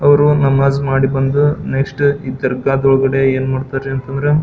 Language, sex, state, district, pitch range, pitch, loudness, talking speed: Kannada, male, Karnataka, Belgaum, 135-145 Hz, 135 Hz, -15 LUFS, 160 wpm